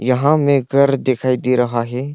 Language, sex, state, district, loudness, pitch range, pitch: Hindi, male, Arunachal Pradesh, Longding, -16 LUFS, 125-140 Hz, 130 Hz